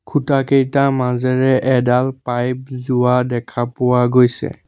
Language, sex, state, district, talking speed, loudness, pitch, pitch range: Assamese, male, Assam, Sonitpur, 100 wpm, -16 LUFS, 125 Hz, 125-130 Hz